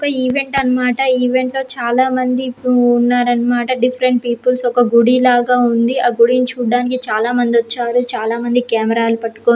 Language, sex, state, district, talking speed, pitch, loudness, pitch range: Telugu, female, Andhra Pradesh, Srikakulam, 150 wpm, 245 Hz, -15 LUFS, 240-255 Hz